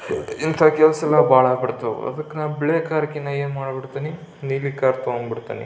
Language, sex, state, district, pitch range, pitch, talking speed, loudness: Kannada, male, Karnataka, Belgaum, 135-155 Hz, 150 Hz, 150 wpm, -20 LUFS